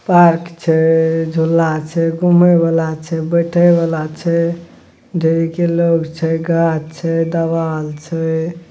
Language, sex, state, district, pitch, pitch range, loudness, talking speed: Maithili, male, Bihar, Madhepura, 165 Hz, 160-170 Hz, -15 LUFS, 115 wpm